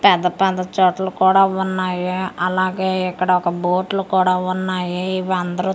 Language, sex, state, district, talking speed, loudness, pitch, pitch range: Telugu, female, Andhra Pradesh, Manyam, 135 wpm, -19 LUFS, 185 Hz, 180-190 Hz